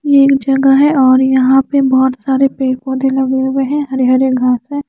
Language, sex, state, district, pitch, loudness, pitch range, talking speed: Hindi, female, Chandigarh, Chandigarh, 265 Hz, -12 LUFS, 260-275 Hz, 195 wpm